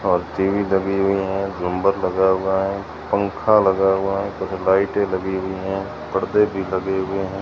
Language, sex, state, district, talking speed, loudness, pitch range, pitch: Hindi, male, Rajasthan, Jaisalmer, 185 wpm, -20 LUFS, 95-100 Hz, 95 Hz